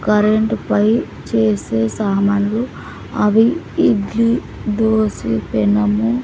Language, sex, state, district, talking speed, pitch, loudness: Telugu, female, Andhra Pradesh, Sri Satya Sai, 65 wpm, 205 Hz, -17 LUFS